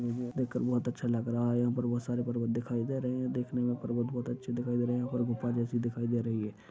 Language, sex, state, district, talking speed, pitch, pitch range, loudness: Hindi, male, Maharashtra, Aurangabad, 315 wpm, 120 Hz, 120-125 Hz, -33 LUFS